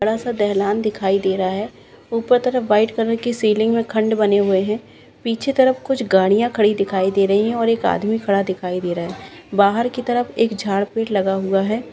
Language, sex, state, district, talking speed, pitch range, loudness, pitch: Hindi, female, Bihar, Saharsa, 215 wpm, 195-230 Hz, -19 LUFS, 215 Hz